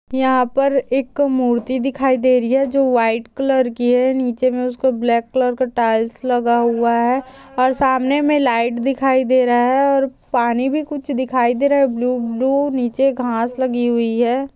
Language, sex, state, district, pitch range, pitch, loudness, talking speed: Hindi, female, Rajasthan, Churu, 240-270 Hz, 255 Hz, -17 LUFS, 190 wpm